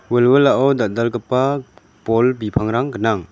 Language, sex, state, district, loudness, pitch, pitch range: Garo, male, Meghalaya, West Garo Hills, -17 LUFS, 120 Hz, 110-130 Hz